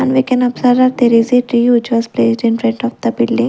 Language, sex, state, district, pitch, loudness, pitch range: English, female, Punjab, Kapurthala, 240 Hz, -13 LUFS, 230-250 Hz